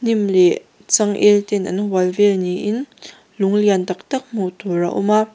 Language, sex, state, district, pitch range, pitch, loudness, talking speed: Mizo, female, Mizoram, Aizawl, 185-210 Hz, 205 Hz, -18 LUFS, 190 wpm